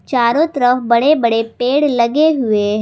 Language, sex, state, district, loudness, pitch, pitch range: Hindi, female, Jharkhand, Garhwa, -14 LUFS, 245 Hz, 235-290 Hz